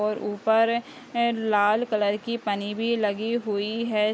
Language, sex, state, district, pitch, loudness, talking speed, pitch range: Hindi, female, Uttar Pradesh, Deoria, 220 Hz, -25 LUFS, 160 wpm, 210-235 Hz